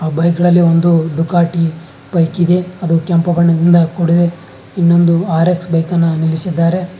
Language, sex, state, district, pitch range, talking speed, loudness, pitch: Kannada, male, Karnataka, Bangalore, 165-175 Hz, 145 wpm, -13 LUFS, 170 Hz